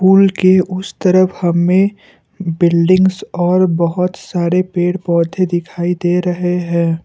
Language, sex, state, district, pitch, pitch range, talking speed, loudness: Hindi, male, Assam, Kamrup Metropolitan, 180 Hz, 175-185 Hz, 125 wpm, -14 LUFS